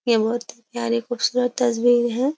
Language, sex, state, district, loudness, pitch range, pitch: Hindi, female, Uttar Pradesh, Jyotiba Phule Nagar, -21 LUFS, 235-245 Hz, 240 Hz